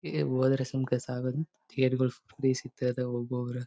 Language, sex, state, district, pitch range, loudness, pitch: Kannada, male, Karnataka, Bellary, 125-130 Hz, -31 LUFS, 130 Hz